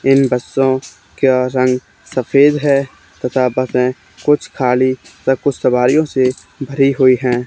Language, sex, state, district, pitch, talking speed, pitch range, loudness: Hindi, male, Haryana, Charkhi Dadri, 130 Hz, 135 wpm, 125-135 Hz, -15 LUFS